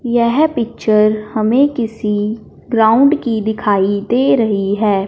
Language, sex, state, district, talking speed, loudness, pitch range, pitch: Hindi, male, Punjab, Fazilka, 120 wpm, -14 LUFS, 210-240 Hz, 220 Hz